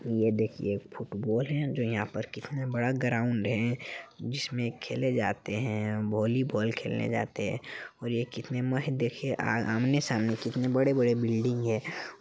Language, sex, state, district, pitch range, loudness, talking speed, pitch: Hindi, male, Bihar, Jamui, 110-130 Hz, -30 LUFS, 155 wpm, 120 Hz